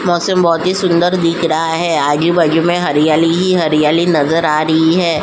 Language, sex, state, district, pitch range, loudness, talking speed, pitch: Hindi, female, Uttar Pradesh, Jyotiba Phule Nagar, 160-175 Hz, -13 LUFS, 185 wpm, 165 Hz